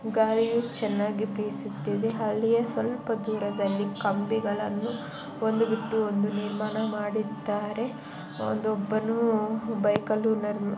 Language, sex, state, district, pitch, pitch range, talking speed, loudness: Kannada, female, Karnataka, Mysore, 215 Hz, 205-225 Hz, 95 wpm, -28 LUFS